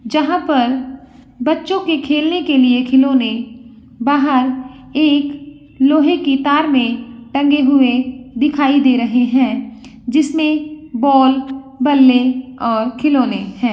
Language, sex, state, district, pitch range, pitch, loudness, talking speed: Hindi, female, Bihar, Begusarai, 250-290 Hz, 265 Hz, -15 LUFS, 115 wpm